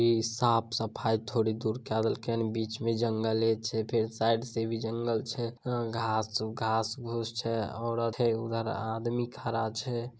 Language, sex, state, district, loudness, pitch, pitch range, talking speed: Maithili, male, Bihar, Samastipur, -31 LUFS, 115 Hz, 110-115 Hz, 165 wpm